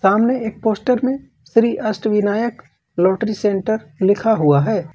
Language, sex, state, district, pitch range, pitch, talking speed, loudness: Hindi, male, Jharkhand, Ranchi, 195-225 Hz, 215 Hz, 135 wpm, -18 LUFS